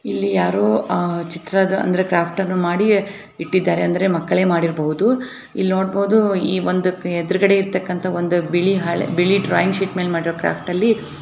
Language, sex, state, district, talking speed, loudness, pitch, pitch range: Kannada, female, Karnataka, Bellary, 145 wpm, -18 LUFS, 185 Hz, 175-195 Hz